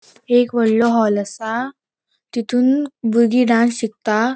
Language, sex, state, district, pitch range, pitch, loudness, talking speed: Konkani, female, Goa, North and South Goa, 225-245 Hz, 235 Hz, -17 LUFS, 110 wpm